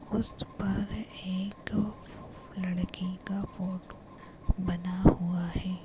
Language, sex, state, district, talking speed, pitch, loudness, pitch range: Hindi, female, Chhattisgarh, Jashpur, 90 wpm, 185 Hz, -31 LUFS, 180-190 Hz